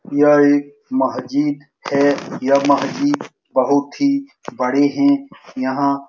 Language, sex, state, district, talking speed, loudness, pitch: Hindi, male, Bihar, Saran, 120 wpm, -17 LUFS, 145 Hz